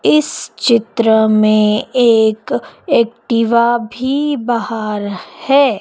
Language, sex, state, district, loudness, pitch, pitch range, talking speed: Hindi, female, Madhya Pradesh, Dhar, -14 LUFS, 230 Hz, 215-250 Hz, 80 wpm